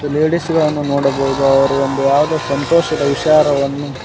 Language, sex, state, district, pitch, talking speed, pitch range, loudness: Kannada, male, Karnataka, Koppal, 140 Hz, 105 wpm, 140-155 Hz, -15 LUFS